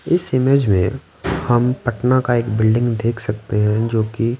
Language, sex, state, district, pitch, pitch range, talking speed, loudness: Hindi, male, Bihar, Patna, 120 Hz, 110-125 Hz, 165 wpm, -18 LUFS